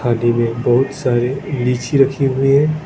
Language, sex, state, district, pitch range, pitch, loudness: Hindi, male, Arunachal Pradesh, Lower Dibang Valley, 120-135 Hz, 130 Hz, -16 LUFS